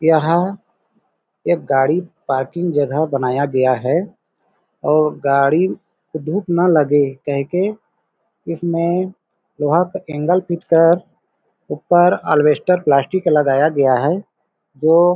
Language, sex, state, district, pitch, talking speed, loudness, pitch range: Hindi, male, Chhattisgarh, Balrampur, 160 Hz, 115 wpm, -17 LUFS, 145-175 Hz